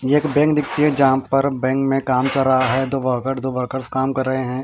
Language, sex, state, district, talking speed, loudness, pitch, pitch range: Hindi, male, Haryana, Jhajjar, 260 wpm, -19 LUFS, 135 Hz, 130-135 Hz